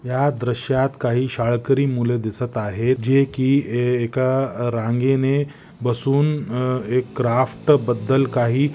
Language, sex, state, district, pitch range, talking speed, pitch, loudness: Marathi, male, Maharashtra, Nagpur, 120-135 Hz, 130 wpm, 130 Hz, -20 LUFS